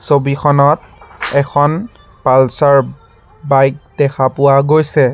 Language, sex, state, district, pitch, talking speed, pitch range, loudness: Assamese, male, Assam, Sonitpur, 140 Hz, 80 wpm, 135-145 Hz, -13 LUFS